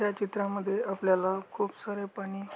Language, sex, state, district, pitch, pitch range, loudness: Marathi, male, Maharashtra, Aurangabad, 200 Hz, 195-205 Hz, -31 LUFS